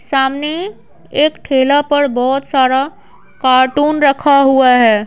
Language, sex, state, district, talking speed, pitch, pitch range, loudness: Hindi, female, Bihar, Patna, 130 wpm, 275 Hz, 260-290 Hz, -13 LUFS